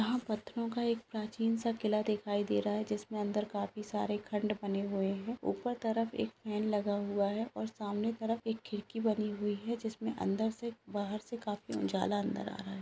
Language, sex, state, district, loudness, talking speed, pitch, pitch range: Hindi, female, Bihar, Jahanabad, -36 LUFS, 210 wpm, 215 Hz, 205-225 Hz